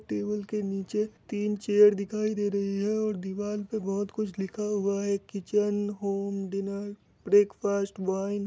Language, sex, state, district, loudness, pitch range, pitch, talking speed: Hindi, male, Bihar, Muzaffarpur, -29 LUFS, 200-210 Hz, 205 Hz, 170 wpm